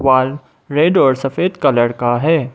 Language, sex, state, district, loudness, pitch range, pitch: Hindi, male, Mizoram, Aizawl, -15 LUFS, 130-155 Hz, 135 Hz